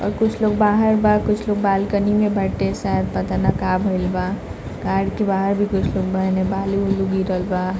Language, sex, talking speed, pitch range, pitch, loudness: Bhojpuri, female, 210 wpm, 190-210 Hz, 195 Hz, -20 LUFS